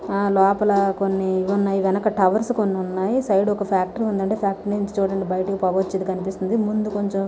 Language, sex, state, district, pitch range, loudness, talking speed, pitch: Telugu, female, Andhra Pradesh, Visakhapatnam, 190-205 Hz, -21 LUFS, 175 wpm, 195 Hz